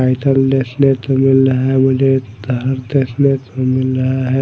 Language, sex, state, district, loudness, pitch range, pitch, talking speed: Hindi, male, Odisha, Malkangiri, -14 LUFS, 130-135 Hz, 130 Hz, 175 wpm